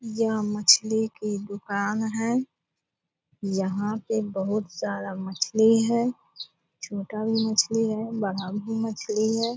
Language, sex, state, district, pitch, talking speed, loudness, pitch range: Hindi, female, Bihar, Purnia, 215 Hz, 120 wpm, -25 LUFS, 200-225 Hz